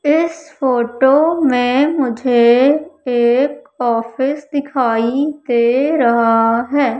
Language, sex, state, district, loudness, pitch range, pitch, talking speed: Hindi, female, Madhya Pradesh, Umaria, -15 LUFS, 240-290 Hz, 265 Hz, 85 wpm